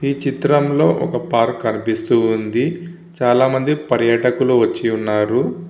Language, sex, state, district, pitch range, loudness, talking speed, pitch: Telugu, male, Andhra Pradesh, Visakhapatnam, 115-145 Hz, -17 LUFS, 95 wpm, 125 Hz